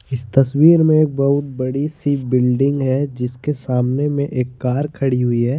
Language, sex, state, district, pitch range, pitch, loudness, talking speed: Hindi, male, Chandigarh, Chandigarh, 125-145 Hz, 135 Hz, -17 LUFS, 180 wpm